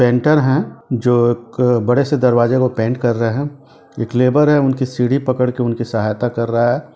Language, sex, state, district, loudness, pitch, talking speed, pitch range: Hindi, male, Bihar, Sitamarhi, -16 LUFS, 125 Hz, 205 wpm, 120-130 Hz